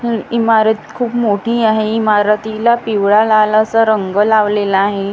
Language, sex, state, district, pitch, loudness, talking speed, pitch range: Marathi, female, Maharashtra, Gondia, 215 Hz, -13 LUFS, 140 wpm, 210-225 Hz